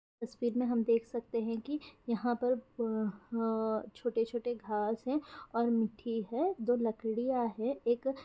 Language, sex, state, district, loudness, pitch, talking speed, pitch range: Hindi, female, Bihar, Jahanabad, -34 LUFS, 235 Hz, 165 wpm, 225-245 Hz